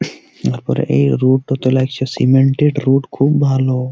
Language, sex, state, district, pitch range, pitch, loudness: Bengali, male, West Bengal, Jalpaiguri, 130-135 Hz, 130 Hz, -15 LUFS